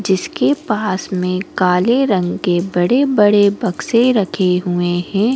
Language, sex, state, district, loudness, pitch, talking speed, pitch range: Hindi, female, Goa, North and South Goa, -15 LUFS, 190 Hz, 125 wpm, 180-215 Hz